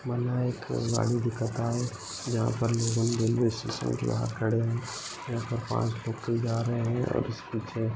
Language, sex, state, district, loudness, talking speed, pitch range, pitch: Marathi, male, Maharashtra, Sindhudurg, -30 LUFS, 175 wpm, 115-120 Hz, 115 Hz